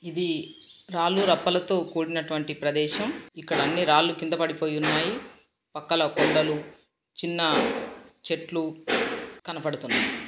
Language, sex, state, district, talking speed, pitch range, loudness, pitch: Telugu, male, Telangana, Karimnagar, 95 wpm, 155-180 Hz, -26 LUFS, 165 Hz